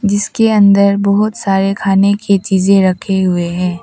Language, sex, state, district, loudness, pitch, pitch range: Hindi, female, Arunachal Pradesh, Papum Pare, -12 LUFS, 195 Hz, 190-205 Hz